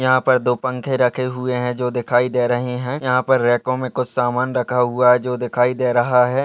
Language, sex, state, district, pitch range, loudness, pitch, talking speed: Hindi, male, Goa, North and South Goa, 125-130 Hz, -18 LUFS, 125 Hz, 250 wpm